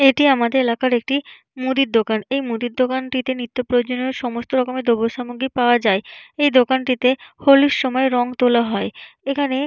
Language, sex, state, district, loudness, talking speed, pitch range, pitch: Bengali, female, West Bengal, Jalpaiguri, -19 LUFS, 160 wpm, 245-265 Hz, 255 Hz